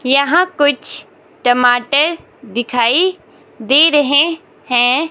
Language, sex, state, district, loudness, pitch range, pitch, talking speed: Hindi, female, Himachal Pradesh, Shimla, -13 LUFS, 245-320 Hz, 280 Hz, 80 wpm